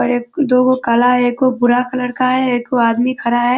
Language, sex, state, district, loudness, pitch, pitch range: Hindi, female, Bihar, Kishanganj, -15 LUFS, 250 Hz, 245-255 Hz